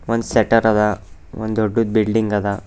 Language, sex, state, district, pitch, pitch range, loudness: Kannada, male, Karnataka, Bidar, 110 Hz, 105-110 Hz, -18 LUFS